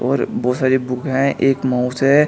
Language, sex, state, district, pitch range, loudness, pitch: Hindi, male, Uttar Pradesh, Shamli, 125-135 Hz, -18 LUFS, 130 Hz